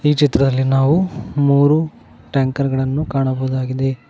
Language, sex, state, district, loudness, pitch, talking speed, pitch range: Kannada, male, Karnataka, Koppal, -17 LUFS, 135 Hz, 100 wpm, 130-150 Hz